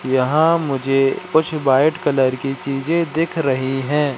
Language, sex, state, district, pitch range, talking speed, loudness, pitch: Hindi, male, Madhya Pradesh, Katni, 135-160 Hz, 145 wpm, -18 LUFS, 140 Hz